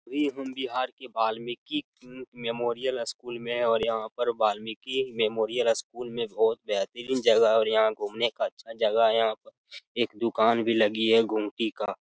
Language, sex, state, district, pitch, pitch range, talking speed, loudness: Hindi, male, Bihar, Jamui, 115 Hz, 110-125 Hz, 170 wpm, -27 LUFS